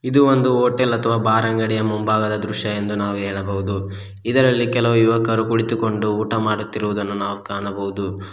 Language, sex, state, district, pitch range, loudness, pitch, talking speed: Kannada, male, Karnataka, Koppal, 100-115 Hz, -19 LUFS, 110 Hz, 135 wpm